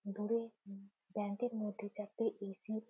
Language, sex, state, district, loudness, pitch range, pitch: Bengali, female, West Bengal, Jhargram, -41 LUFS, 200-220 Hz, 210 Hz